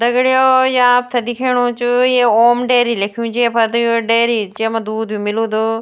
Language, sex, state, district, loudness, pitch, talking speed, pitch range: Garhwali, female, Uttarakhand, Tehri Garhwal, -14 LUFS, 235 Hz, 205 wpm, 225-245 Hz